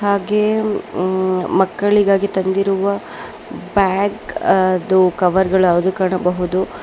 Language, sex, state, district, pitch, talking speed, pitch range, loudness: Kannada, female, Karnataka, Bangalore, 190 Hz, 60 wpm, 185-200 Hz, -16 LUFS